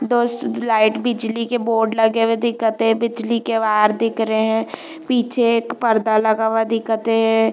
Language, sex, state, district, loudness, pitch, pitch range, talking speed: Hindi, female, Chhattisgarh, Bilaspur, -18 LUFS, 225 Hz, 225-235 Hz, 175 wpm